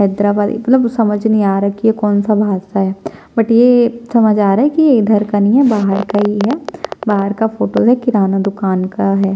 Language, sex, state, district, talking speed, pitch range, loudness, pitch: Hindi, female, Chhattisgarh, Sukma, 250 wpm, 200-230 Hz, -13 LUFS, 210 Hz